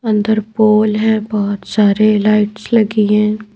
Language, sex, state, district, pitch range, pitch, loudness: Hindi, female, Madhya Pradesh, Bhopal, 210-215 Hz, 215 Hz, -14 LUFS